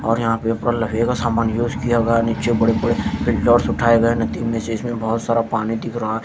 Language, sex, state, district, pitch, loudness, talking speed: Hindi, male, Haryana, Jhajjar, 115 Hz, -19 LUFS, 155 wpm